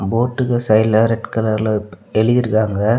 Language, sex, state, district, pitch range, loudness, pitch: Tamil, male, Tamil Nadu, Kanyakumari, 110-115 Hz, -17 LUFS, 110 Hz